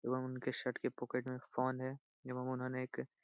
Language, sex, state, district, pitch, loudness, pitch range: Hindi, male, Bihar, Supaul, 130 Hz, -41 LUFS, 125-130 Hz